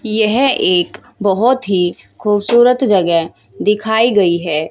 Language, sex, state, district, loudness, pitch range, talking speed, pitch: Hindi, male, Haryana, Jhajjar, -14 LUFS, 190-245 Hz, 115 wpm, 215 Hz